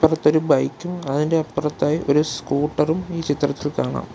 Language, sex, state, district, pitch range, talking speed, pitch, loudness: Malayalam, male, Kerala, Kollam, 145-160 Hz, 145 wpm, 150 Hz, -21 LUFS